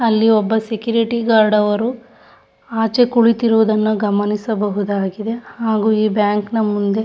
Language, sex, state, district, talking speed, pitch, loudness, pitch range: Kannada, female, Karnataka, Shimoga, 110 wpm, 220 Hz, -17 LUFS, 210-230 Hz